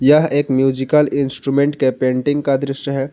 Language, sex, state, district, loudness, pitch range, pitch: Hindi, male, Jharkhand, Ranchi, -17 LUFS, 135-145 Hz, 140 Hz